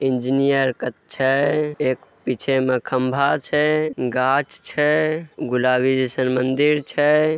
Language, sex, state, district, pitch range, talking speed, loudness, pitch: Hindi, male, Bihar, Begusarai, 130-150 Hz, 115 wpm, -20 LUFS, 135 Hz